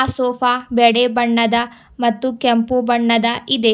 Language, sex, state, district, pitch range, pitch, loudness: Kannada, female, Karnataka, Bidar, 235-250 Hz, 240 Hz, -16 LUFS